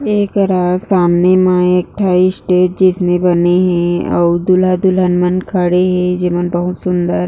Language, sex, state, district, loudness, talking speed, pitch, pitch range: Chhattisgarhi, female, Chhattisgarh, Jashpur, -13 LUFS, 125 wpm, 180 Hz, 175-185 Hz